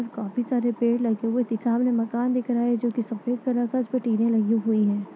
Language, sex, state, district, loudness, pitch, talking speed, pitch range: Hindi, female, Chhattisgarh, Bastar, -24 LUFS, 235 Hz, 290 wpm, 225-245 Hz